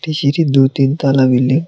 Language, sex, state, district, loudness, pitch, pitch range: Bengali, male, Tripura, West Tripura, -13 LUFS, 135 Hz, 135-155 Hz